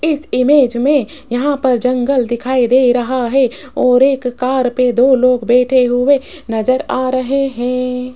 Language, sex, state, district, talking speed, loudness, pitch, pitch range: Hindi, female, Rajasthan, Jaipur, 160 wpm, -14 LUFS, 255 Hz, 250-265 Hz